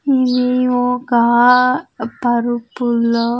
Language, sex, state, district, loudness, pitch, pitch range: Telugu, female, Andhra Pradesh, Sri Satya Sai, -15 LUFS, 245 Hz, 235-250 Hz